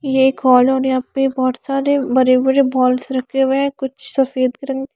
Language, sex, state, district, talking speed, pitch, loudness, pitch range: Hindi, female, Maharashtra, Mumbai Suburban, 230 wpm, 265 Hz, -16 LUFS, 255-270 Hz